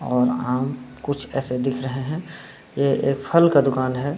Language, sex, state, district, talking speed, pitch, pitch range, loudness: Hindi, male, Bihar, Saran, 185 wpm, 135 Hz, 125-140 Hz, -22 LUFS